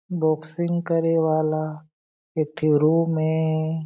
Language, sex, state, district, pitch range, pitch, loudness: Chhattisgarhi, male, Chhattisgarh, Jashpur, 155-165 Hz, 155 Hz, -23 LUFS